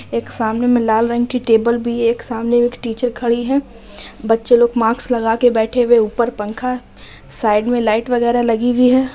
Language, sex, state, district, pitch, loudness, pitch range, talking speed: Hindi, female, Bihar, Muzaffarpur, 235 Hz, -16 LUFS, 225-245 Hz, 215 wpm